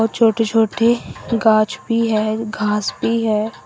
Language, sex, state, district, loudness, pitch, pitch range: Hindi, female, Assam, Sonitpur, -18 LUFS, 225 Hz, 215-230 Hz